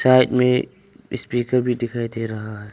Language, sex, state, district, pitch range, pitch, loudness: Hindi, male, Arunachal Pradesh, Longding, 115-125 Hz, 120 Hz, -21 LUFS